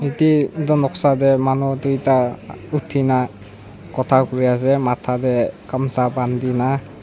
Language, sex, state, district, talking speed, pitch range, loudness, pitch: Nagamese, male, Nagaland, Dimapur, 120 wpm, 125-135 Hz, -18 LUFS, 130 Hz